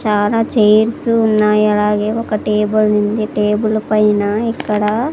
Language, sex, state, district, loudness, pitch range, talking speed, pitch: Telugu, female, Andhra Pradesh, Sri Satya Sai, -14 LUFS, 210-220 Hz, 115 wpm, 215 Hz